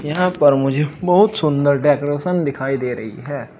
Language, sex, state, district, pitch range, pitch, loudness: Hindi, male, Uttar Pradesh, Shamli, 140-175 Hz, 145 Hz, -17 LUFS